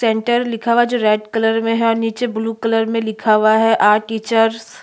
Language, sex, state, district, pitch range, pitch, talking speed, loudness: Hindi, female, Chhattisgarh, Sukma, 220-230 Hz, 225 Hz, 250 wpm, -16 LUFS